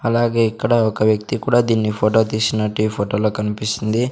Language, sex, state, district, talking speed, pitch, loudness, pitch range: Telugu, male, Andhra Pradesh, Sri Satya Sai, 175 wpm, 110 Hz, -18 LUFS, 105-115 Hz